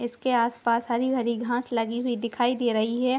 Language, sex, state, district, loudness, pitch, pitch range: Hindi, female, Chhattisgarh, Bilaspur, -26 LUFS, 240 Hz, 235-245 Hz